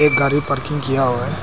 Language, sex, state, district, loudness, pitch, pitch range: Hindi, male, Arunachal Pradesh, Papum Pare, -18 LUFS, 140 Hz, 135-145 Hz